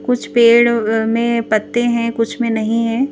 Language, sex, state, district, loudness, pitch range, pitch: Hindi, female, Madhya Pradesh, Bhopal, -15 LUFS, 230-235 Hz, 235 Hz